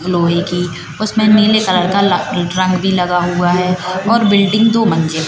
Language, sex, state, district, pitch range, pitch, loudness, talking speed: Hindi, female, Madhya Pradesh, Katni, 175-210 Hz, 185 Hz, -13 LUFS, 180 wpm